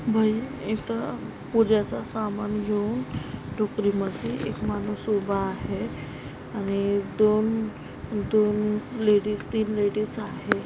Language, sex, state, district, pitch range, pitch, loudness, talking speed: Marathi, female, Maharashtra, Aurangabad, 205-220 Hz, 210 Hz, -26 LUFS, 100 wpm